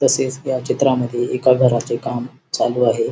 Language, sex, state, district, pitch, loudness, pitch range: Marathi, male, Maharashtra, Sindhudurg, 130 Hz, -18 LUFS, 120-135 Hz